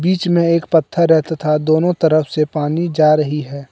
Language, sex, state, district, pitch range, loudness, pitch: Hindi, male, Jharkhand, Deoghar, 150-170 Hz, -15 LUFS, 155 Hz